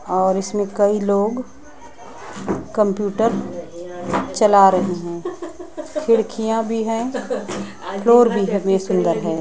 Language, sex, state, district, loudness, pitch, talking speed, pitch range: Hindi, female, Chhattisgarh, Raipur, -19 LUFS, 205 Hz, 110 wpm, 190-230 Hz